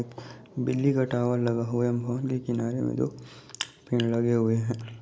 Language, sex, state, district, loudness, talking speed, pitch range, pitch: Hindi, male, Chhattisgarh, Bastar, -28 LUFS, 180 wpm, 115-120 Hz, 120 Hz